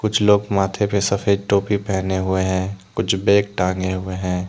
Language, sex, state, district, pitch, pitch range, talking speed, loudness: Hindi, male, Jharkhand, Deoghar, 95 Hz, 95-100 Hz, 185 wpm, -20 LUFS